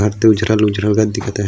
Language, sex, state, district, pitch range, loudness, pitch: Chhattisgarhi, male, Chhattisgarh, Raigarh, 105-110 Hz, -15 LUFS, 105 Hz